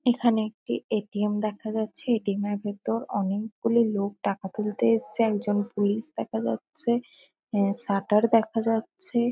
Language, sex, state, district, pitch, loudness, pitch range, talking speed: Bengali, female, West Bengal, Kolkata, 215 Hz, -26 LUFS, 205-230 Hz, 135 wpm